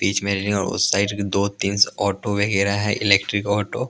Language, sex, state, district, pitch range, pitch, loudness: Hindi, male, Punjab, Pathankot, 100-105 Hz, 100 Hz, -20 LUFS